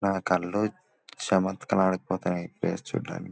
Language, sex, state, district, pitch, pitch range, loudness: Telugu, male, Telangana, Nalgonda, 95 Hz, 90-95 Hz, -28 LUFS